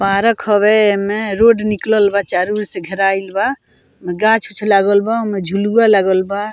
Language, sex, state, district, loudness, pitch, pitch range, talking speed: Bhojpuri, female, Bihar, Muzaffarpur, -14 LUFS, 205 Hz, 195-215 Hz, 200 wpm